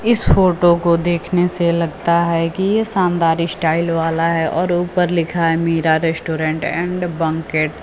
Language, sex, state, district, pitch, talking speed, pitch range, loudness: Hindi, female, Uttar Pradesh, Lucknow, 170 Hz, 170 wpm, 165-175 Hz, -17 LUFS